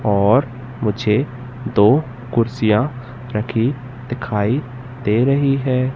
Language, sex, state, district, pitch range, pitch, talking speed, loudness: Hindi, male, Madhya Pradesh, Katni, 110-130 Hz, 125 Hz, 90 wpm, -18 LUFS